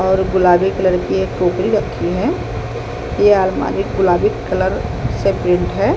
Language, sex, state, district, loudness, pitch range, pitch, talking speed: Hindi, female, Chhattisgarh, Balrampur, -16 LUFS, 180-190 Hz, 185 Hz, 160 wpm